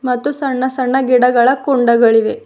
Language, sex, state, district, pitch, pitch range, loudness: Kannada, female, Karnataka, Bidar, 255 Hz, 245-270 Hz, -13 LUFS